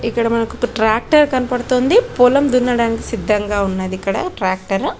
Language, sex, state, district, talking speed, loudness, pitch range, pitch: Telugu, female, Telangana, Karimnagar, 130 wpm, -16 LUFS, 205-250 Hz, 230 Hz